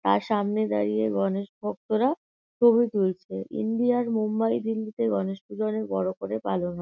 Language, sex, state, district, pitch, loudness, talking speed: Bengali, female, West Bengal, North 24 Parganas, 210 Hz, -26 LUFS, 140 wpm